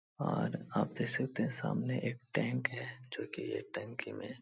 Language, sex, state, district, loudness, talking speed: Hindi, male, Bihar, Supaul, -37 LUFS, 165 wpm